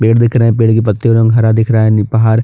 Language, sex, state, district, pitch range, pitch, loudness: Hindi, male, Chhattisgarh, Bastar, 110-115 Hz, 115 Hz, -11 LUFS